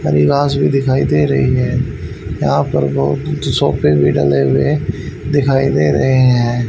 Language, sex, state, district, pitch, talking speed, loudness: Hindi, male, Haryana, Rohtak, 120 Hz, 155 wpm, -14 LUFS